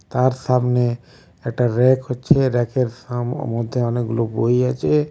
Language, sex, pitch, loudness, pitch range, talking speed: Bengali, male, 125 Hz, -20 LUFS, 120-130 Hz, 115 wpm